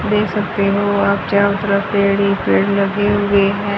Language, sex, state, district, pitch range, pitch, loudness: Hindi, female, Haryana, Charkhi Dadri, 200-205 Hz, 200 Hz, -16 LUFS